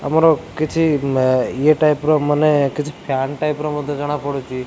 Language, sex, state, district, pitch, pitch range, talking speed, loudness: Odia, male, Odisha, Khordha, 145 Hz, 140-155 Hz, 140 wpm, -18 LUFS